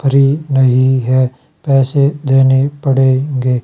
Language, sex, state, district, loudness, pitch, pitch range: Hindi, male, Haryana, Charkhi Dadri, -12 LUFS, 135 Hz, 130-140 Hz